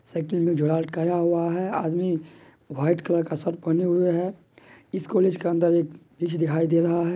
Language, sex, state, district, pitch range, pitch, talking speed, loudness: Maithili, male, Bihar, Madhepura, 160-175 Hz, 170 Hz, 200 wpm, -24 LUFS